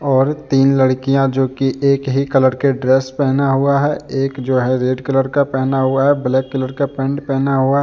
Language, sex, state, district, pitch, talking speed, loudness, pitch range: Hindi, male, Jharkhand, Deoghar, 135 Hz, 220 wpm, -16 LUFS, 130-140 Hz